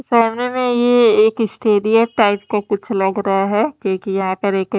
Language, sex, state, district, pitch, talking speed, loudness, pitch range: Hindi, female, Haryana, Charkhi Dadri, 210 Hz, 200 wpm, -16 LUFS, 195-230 Hz